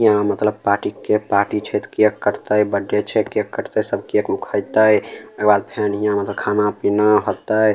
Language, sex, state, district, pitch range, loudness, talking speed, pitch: Maithili, male, Bihar, Samastipur, 100-105 Hz, -19 LUFS, 185 wpm, 105 Hz